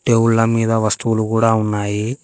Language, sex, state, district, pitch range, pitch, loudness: Telugu, female, Telangana, Hyderabad, 110-115 Hz, 115 Hz, -17 LUFS